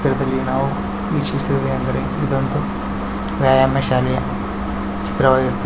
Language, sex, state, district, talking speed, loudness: Kannada, male, Karnataka, Bangalore, 95 wpm, -19 LUFS